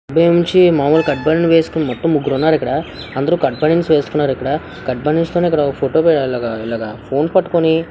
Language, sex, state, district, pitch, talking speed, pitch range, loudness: Telugu, male, Andhra Pradesh, Visakhapatnam, 155 Hz, 135 wpm, 135-165 Hz, -15 LUFS